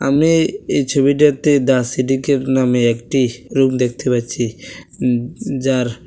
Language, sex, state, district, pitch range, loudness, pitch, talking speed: Bengali, male, Tripura, West Tripura, 125-140 Hz, -16 LUFS, 130 Hz, 130 wpm